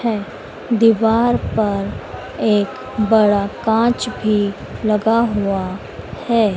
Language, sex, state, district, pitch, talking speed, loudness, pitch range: Hindi, female, Madhya Pradesh, Dhar, 215 Hz, 90 wpm, -17 LUFS, 205-230 Hz